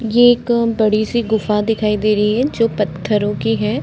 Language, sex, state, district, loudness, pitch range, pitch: Hindi, female, Uttar Pradesh, Budaun, -16 LUFS, 210-230 Hz, 220 Hz